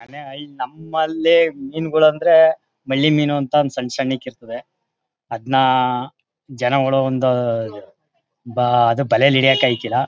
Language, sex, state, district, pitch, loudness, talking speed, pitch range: Kannada, male, Karnataka, Mysore, 135 Hz, -17 LUFS, 115 wpm, 125-150 Hz